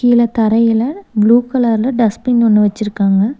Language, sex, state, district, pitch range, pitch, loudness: Tamil, female, Tamil Nadu, Nilgiris, 215-245 Hz, 230 Hz, -13 LUFS